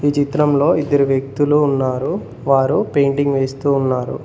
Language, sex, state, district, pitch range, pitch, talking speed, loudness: Telugu, male, Telangana, Mahabubabad, 135-145 Hz, 140 Hz, 115 wpm, -17 LUFS